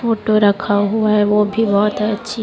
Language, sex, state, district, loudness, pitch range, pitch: Hindi, female, Chhattisgarh, Raipur, -15 LUFS, 205-220 Hz, 210 Hz